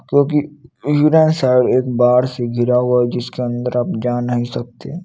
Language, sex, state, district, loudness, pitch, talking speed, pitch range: Hindi, male, Chandigarh, Chandigarh, -16 LUFS, 125 Hz, 165 wpm, 120-145 Hz